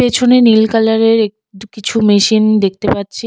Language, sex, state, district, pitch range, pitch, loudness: Bengali, female, West Bengal, Alipurduar, 210-225 Hz, 220 Hz, -11 LUFS